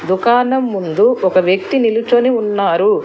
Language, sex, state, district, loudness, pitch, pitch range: Telugu, female, Telangana, Hyderabad, -14 LUFS, 225 Hz, 190-250 Hz